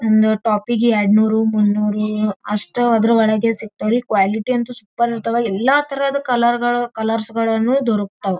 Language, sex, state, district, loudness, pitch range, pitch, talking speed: Kannada, female, Karnataka, Gulbarga, -17 LUFS, 215-235 Hz, 225 Hz, 150 wpm